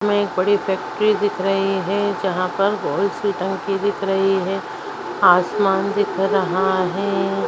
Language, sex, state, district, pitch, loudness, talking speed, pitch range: Bhojpuri, female, Uttar Pradesh, Gorakhpur, 195 Hz, -19 LUFS, 155 wpm, 190-205 Hz